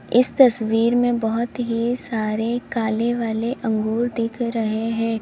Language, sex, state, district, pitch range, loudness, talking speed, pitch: Hindi, female, Uttar Pradesh, Lalitpur, 225-240 Hz, -21 LUFS, 140 wpm, 230 Hz